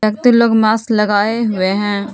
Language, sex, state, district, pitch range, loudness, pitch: Hindi, female, Jharkhand, Palamu, 205-230 Hz, -14 LUFS, 215 Hz